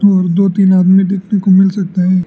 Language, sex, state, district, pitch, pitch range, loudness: Hindi, male, Arunachal Pradesh, Lower Dibang Valley, 190 Hz, 185-195 Hz, -11 LUFS